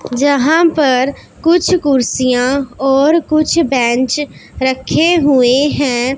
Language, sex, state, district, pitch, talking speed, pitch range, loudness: Hindi, female, Punjab, Pathankot, 275 Hz, 95 wpm, 260-310 Hz, -13 LUFS